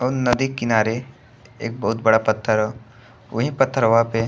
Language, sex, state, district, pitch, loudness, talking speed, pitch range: Bhojpuri, male, Uttar Pradesh, Gorakhpur, 115 Hz, -20 LUFS, 185 wpm, 110-125 Hz